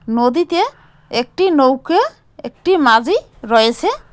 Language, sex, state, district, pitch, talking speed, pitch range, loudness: Bengali, female, West Bengal, Cooch Behar, 295 Hz, 85 wpm, 235-375 Hz, -15 LUFS